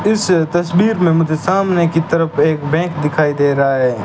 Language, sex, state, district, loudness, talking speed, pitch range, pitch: Hindi, male, Rajasthan, Bikaner, -15 LUFS, 190 wpm, 150-175 Hz, 165 Hz